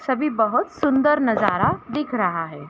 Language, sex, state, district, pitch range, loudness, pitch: Hindi, female, Jharkhand, Jamtara, 210-295 Hz, -21 LUFS, 250 Hz